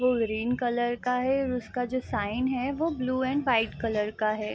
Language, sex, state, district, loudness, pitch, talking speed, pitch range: Hindi, female, Bihar, East Champaran, -28 LUFS, 250 Hz, 225 wpm, 225-255 Hz